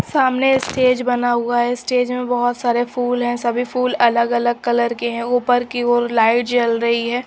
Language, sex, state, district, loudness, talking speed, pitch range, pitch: Hindi, female, Chhattisgarh, Raipur, -18 LUFS, 205 wpm, 240-250 Hz, 245 Hz